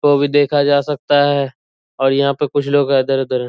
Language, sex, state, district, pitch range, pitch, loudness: Hindi, male, Bihar, Purnia, 135-145 Hz, 140 Hz, -15 LUFS